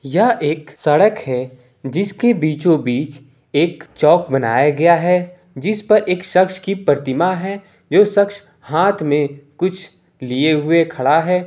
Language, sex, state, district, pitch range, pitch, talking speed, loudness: Hindi, male, Bihar, Gopalganj, 145-190 Hz, 165 Hz, 135 wpm, -16 LUFS